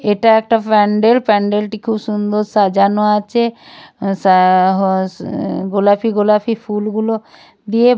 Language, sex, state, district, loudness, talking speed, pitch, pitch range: Bengali, female, West Bengal, Purulia, -14 LUFS, 115 wpm, 210 Hz, 205-225 Hz